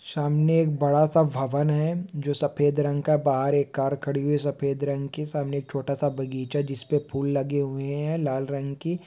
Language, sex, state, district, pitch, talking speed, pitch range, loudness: Hindi, male, Bihar, Supaul, 145 Hz, 190 wpm, 140-150 Hz, -25 LUFS